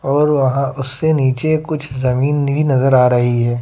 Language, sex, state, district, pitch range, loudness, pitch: Hindi, female, Madhya Pradesh, Bhopal, 130-150 Hz, -15 LUFS, 135 Hz